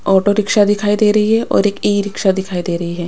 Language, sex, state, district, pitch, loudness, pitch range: Hindi, female, Chhattisgarh, Raipur, 205 Hz, -15 LUFS, 190-210 Hz